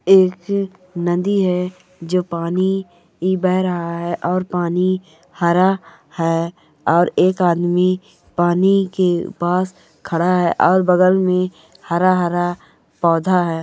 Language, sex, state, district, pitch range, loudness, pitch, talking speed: Hindi, female, Bihar, Bhagalpur, 175-185 Hz, -18 LUFS, 180 Hz, 120 wpm